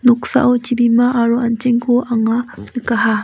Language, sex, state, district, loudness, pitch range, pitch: Garo, female, Meghalaya, West Garo Hills, -15 LUFS, 235-245 Hz, 240 Hz